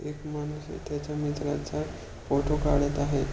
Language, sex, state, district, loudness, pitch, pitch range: Marathi, male, Maharashtra, Pune, -30 LUFS, 145 Hz, 135-150 Hz